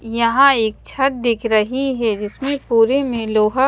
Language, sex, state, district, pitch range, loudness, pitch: Hindi, female, Chandigarh, Chandigarh, 220-270 Hz, -17 LUFS, 235 Hz